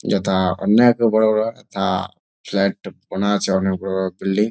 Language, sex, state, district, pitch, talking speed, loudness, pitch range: Bengali, male, West Bengal, Jalpaiguri, 100 Hz, 175 wpm, -19 LUFS, 95-110 Hz